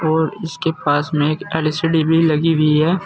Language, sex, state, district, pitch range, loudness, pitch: Hindi, male, Uttar Pradesh, Saharanpur, 155-165 Hz, -17 LUFS, 160 Hz